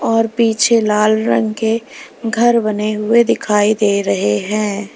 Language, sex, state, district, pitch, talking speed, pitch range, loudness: Hindi, female, Uttar Pradesh, Lalitpur, 215 Hz, 145 wpm, 210-225 Hz, -15 LUFS